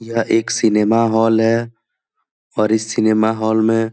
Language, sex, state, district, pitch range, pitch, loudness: Hindi, male, Jharkhand, Jamtara, 110-115 Hz, 110 Hz, -16 LUFS